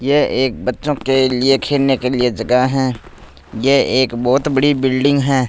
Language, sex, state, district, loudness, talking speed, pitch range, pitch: Hindi, male, Punjab, Fazilka, -16 LUFS, 175 wpm, 125-135 Hz, 130 Hz